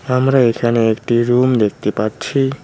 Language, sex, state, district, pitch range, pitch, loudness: Bengali, male, West Bengal, Cooch Behar, 110-130 Hz, 120 Hz, -15 LUFS